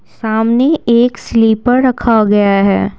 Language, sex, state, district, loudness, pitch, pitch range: Hindi, female, Bihar, Patna, -12 LUFS, 225 Hz, 210-245 Hz